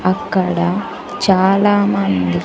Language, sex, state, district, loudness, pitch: Telugu, female, Andhra Pradesh, Sri Satya Sai, -15 LUFS, 185 Hz